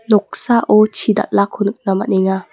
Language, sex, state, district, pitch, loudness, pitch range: Garo, female, Meghalaya, West Garo Hills, 205 Hz, -15 LUFS, 195-215 Hz